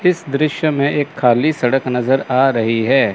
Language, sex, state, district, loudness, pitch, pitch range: Hindi, male, Chandigarh, Chandigarh, -16 LUFS, 135 Hz, 125-150 Hz